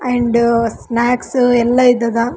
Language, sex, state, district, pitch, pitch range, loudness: Kannada, female, Karnataka, Raichur, 240 Hz, 235-245 Hz, -14 LUFS